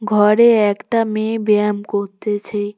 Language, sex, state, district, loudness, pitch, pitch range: Bengali, female, West Bengal, Cooch Behar, -16 LUFS, 210 Hz, 205-220 Hz